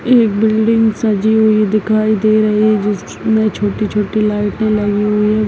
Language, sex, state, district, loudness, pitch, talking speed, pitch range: Hindi, male, Bihar, Bhagalpur, -14 LUFS, 215 Hz, 140 wpm, 210-220 Hz